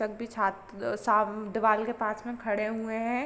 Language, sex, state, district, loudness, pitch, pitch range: Hindi, female, Uttar Pradesh, Varanasi, -30 LUFS, 215 Hz, 210-225 Hz